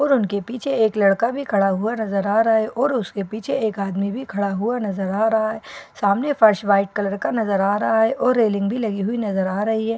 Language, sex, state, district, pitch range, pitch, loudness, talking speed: Hindi, female, Bihar, Katihar, 200-230 Hz, 215 Hz, -20 LUFS, 250 wpm